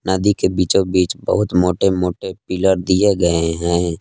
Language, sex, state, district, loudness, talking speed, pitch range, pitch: Hindi, male, Jharkhand, Palamu, -17 LUFS, 165 wpm, 90-95 Hz, 90 Hz